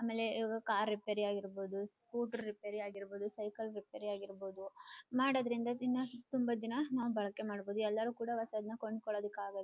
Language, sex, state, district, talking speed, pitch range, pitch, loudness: Kannada, female, Karnataka, Chamarajanagar, 145 wpm, 205-235 Hz, 215 Hz, -40 LUFS